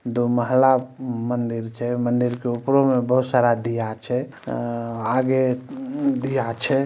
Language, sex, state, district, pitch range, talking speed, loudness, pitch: Maithili, male, Bihar, Samastipur, 120-130 Hz, 140 wpm, -22 LUFS, 125 Hz